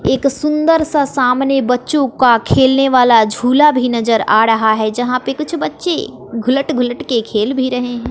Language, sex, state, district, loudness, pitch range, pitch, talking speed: Hindi, female, Bihar, West Champaran, -14 LUFS, 235-275 Hz, 250 Hz, 185 wpm